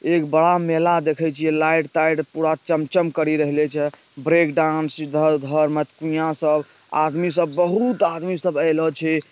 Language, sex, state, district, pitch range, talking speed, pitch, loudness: Angika, male, Bihar, Purnia, 155-165 Hz, 160 wpm, 160 Hz, -20 LUFS